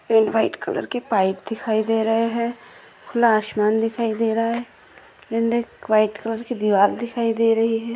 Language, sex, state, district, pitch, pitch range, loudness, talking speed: Hindi, female, Maharashtra, Solapur, 225 Hz, 220-235 Hz, -21 LUFS, 165 wpm